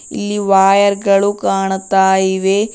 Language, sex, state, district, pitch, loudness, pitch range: Kannada, female, Karnataka, Bidar, 195 Hz, -13 LUFS, 190-200 Hz